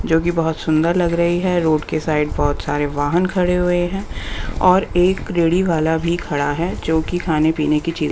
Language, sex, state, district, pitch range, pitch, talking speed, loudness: Hindi, female, Bihar, West Champaran, 155-175 Hz, 165 Hz, 205 wpm, -18 LUFS